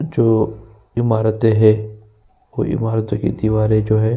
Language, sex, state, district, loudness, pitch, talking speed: Hindi, male, Uttar Pradesh, Jyotiba Phule Nagar, -17 LUFS, 110 Hz, 145 wpm